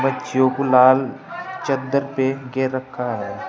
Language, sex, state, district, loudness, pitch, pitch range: Hindi, male, Uttar Pradesh, Saharanpur, -20 LUFS, 130 Hz, 130-135 Hz